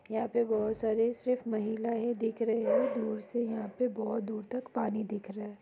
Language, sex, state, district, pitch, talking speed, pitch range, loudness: Hindi, female, Bihar, East Champaran, 225 Hz, 225 wpm, 220-235 Hz, -33 LUFS